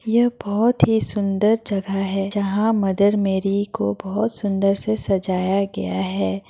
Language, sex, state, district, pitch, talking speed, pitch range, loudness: Hindi, female, Bihar, Madhepura, 200 Hz, 150 wpm, 195-210 Hz, -20 LUFS